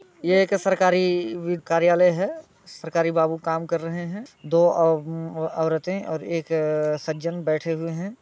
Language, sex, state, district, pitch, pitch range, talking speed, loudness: Hindi, male, Bihar, Muzaffarpur, 165 Hz, 160-180 Hz, 145 wpm, -23 LUFS